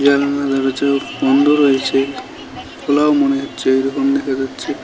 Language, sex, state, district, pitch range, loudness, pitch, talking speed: Bengali, male, West Bengal, Cooch Behar, 135-140 Hz, -16 LUFS, 140 Hz, 125 wpm